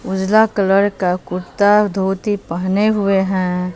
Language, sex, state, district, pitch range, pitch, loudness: Hindi, female, Bihar, West Champaran, 185-205 Hz, 195 Hz, -16 LUFS